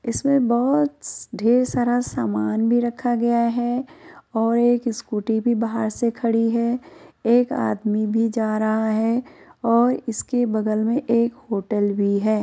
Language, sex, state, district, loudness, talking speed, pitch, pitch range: Hindi, female, Uttar Pradesh, Muzaffarnagar, -21 LUFS, 155 wpm, 235 Hz, 220-245 Hz